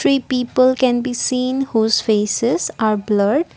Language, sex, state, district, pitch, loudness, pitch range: English, female, Assam, Kamrup Metropolitan, 250 Hz, -17 LUFS, 220-260 Hz